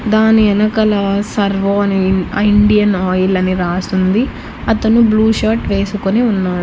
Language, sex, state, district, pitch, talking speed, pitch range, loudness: Telugu, female, Andhra Pradesh, Annamaya, 205 Hz, 125 wpm, 190-220 Hz, -13 LUFS